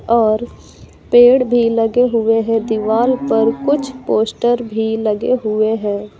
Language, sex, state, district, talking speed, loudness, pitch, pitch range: Hindi, female, Uttar Pradesh, Lucknow, 135 wpm, -15 LUFS, 225 Hz, 220-240 Hz